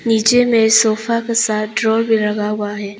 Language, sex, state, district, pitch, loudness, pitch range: Hindi, female, Arunachal Pradesh, Papum Pare, 220 Hz, -15 LUFS, 210-230 Hz